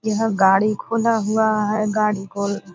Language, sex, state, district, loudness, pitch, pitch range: Hindi, female, Bihar, Purnia, -19 LUFS, 215 Hz, 200-220 Hz